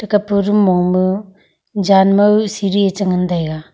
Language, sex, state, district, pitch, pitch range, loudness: Wancho, female, Arunachal Pradesh, Longding, 195 Hz, 185-205 Hz, -14 LUFS